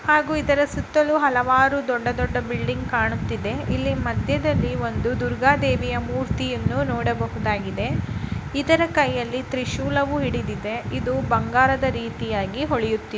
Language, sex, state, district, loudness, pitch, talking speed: Kannada, female, Karnataka, Dakshina Kannada, -22 LUFS, 255 Hz, 105 wpm